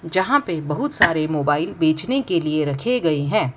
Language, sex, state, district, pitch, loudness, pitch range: Hindi, female, Gujarat, Valsad, 155 Hz, -20 LUFS, 150-175 Hz